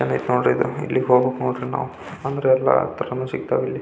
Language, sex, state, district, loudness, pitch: Kannada, male, Karnataka, Belgaum, -21 LUFS, 125 Hz